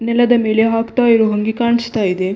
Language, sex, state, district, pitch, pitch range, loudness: Kannada, female, Karnataka, Dakshina Kannada, 225 Hz, 215-235 Hz, -15 LUFS